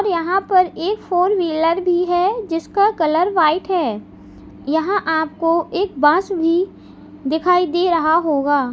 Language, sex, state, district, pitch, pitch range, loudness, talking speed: Hindi, female, Uttar Pradesh, Lalitpur, 345 Hz, 320-370 Hz, -17 LUFS, 135 wpm